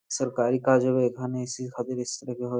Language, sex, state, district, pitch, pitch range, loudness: Bengali, male, West Bengal, Purulia, 125 Hz, 125-130 Hz, -27 LUFS